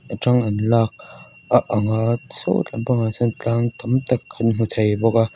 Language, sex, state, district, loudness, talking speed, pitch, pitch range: Mizo, female, Mizoram, Aizawl, -20 LUFS, 200 wpm, 115 Hz, 110-120 Hz